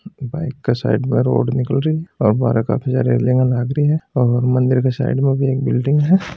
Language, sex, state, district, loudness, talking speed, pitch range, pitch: Marwari, male, Rajasthan, Churu, -17 LUFS, 225 wpm, 125-145 Hz, 130 Hz